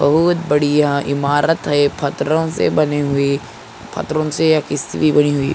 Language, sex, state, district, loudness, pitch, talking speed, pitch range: Hindi, male, Andhra Pradesh, Anantapur, -16 LUFS, 145 Hz, 130 wpm, 140-155 Hz